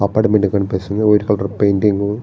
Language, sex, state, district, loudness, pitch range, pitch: Telugu, male, Andhra Pradesh, Srikakulam, -16 LUFS, 100-105 Hz, 105 Hz